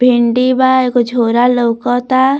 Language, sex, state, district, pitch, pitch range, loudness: Bhojpuri, female, Bihar, Muzaffarpur, 250 Hz, 240-260 Hz, -12 LUFS